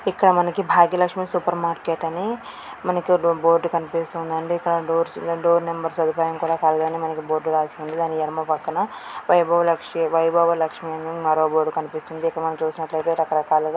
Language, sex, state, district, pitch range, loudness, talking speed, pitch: Telugu, female, Andhra Pradesh, Srikakulam, 160-170 Hz, -22 LUFS, 135 wpm, 165 Hz